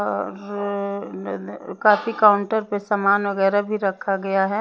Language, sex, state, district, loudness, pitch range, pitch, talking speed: Hindi, female, Himachal Pradesh, Shimla, -21 LUFS, 195-205 Hz, 200 Hz, 115 wpm